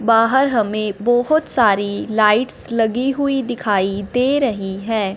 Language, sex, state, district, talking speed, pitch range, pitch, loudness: Hindi, male, Punjab, Fazilka, 130 wpm, 205-255 Hz, 225 Hz, -17 LUFS